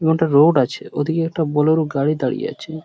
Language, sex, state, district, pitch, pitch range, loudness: Bengali, male, West Bengal, Purulia, 155 Hz, 145-160 Hz, -18 LUFS